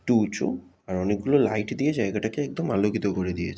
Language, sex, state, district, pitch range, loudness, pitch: Bengali, male, West Bengal, Jalpaiguri, 95-120 Hz, -26 LUFS, 105 Hz